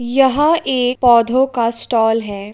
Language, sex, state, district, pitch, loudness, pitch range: Hindi, female, Uttar Pradesh, Jalaun, 245 Hz, -14 LUFS, 230-265 Hz